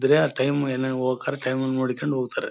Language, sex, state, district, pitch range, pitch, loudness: Kannada, male, Karnataka, Bellary, 130-135 Hz, 130 Hz, -24 LUFS